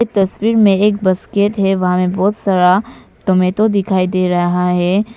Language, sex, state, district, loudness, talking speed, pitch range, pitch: Hindi, female, Arunachal Pradesh, Papum Pare, -14 LUFS, 165 wpm, 180-205 Hz, 195 Hz